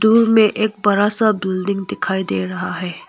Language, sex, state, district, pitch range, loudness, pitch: Hindi, female, Arunachal Pradesh, Longding, 185-220 Hz, -17 LUFS, 200 Hz